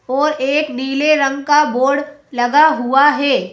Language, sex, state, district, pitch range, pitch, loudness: Hindi, female, Madhya Pradesh, Bhopal, 265-295 Hz, 280 Hz, -14 LUFS